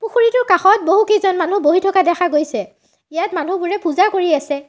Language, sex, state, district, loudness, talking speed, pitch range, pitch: Assamese, female, Assam, Sonitpur, -15 LUFS, 165 wpm, 325-400 Hz, 370 Hz